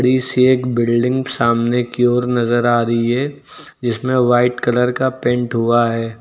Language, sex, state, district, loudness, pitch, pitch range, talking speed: Hindi, male, Uttar Pradesh, Lucknow, -16 LUFS, 120 Hz, 120-125 Hz, 165 wpm